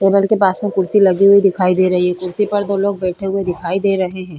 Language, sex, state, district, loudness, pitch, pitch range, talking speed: Hindi, female, Uttar Pradesh, Budaun, -15 LUFS, 195 Hz, 185-200 Hz, 285 wpm